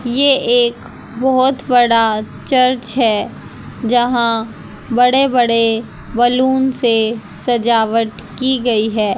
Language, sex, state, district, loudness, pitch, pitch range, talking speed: Hindi, female, Haryana, Jhajjar, -15 LUFS, 240 Hz, 225-255 Hz, 100 wpm